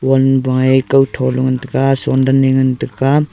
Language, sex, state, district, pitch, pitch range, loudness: Wancho, male, Arunachal Pradesh, Longding, 130 Hz, 130-135 Hz, -14 LUFS